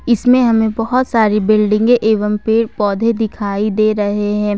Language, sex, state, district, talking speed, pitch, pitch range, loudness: Hindi, female, Jharkhand, Ranchi, 155 wpm, 215 Hz, 210-230 Hz, -14 LUFS